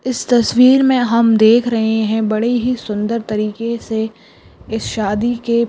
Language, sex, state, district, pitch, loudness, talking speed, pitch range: Hindi, female, Andhra Pradesh, Anantapur, 230 Hz, -15 LUFS, 160 wpm, 220-240 Hz